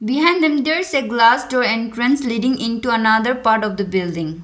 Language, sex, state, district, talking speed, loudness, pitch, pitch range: English, female, Arunachal Pradesh, Lower Dibang Valley, 205 wpm, -17 LUFS, 235 Hz, 220-260 Hz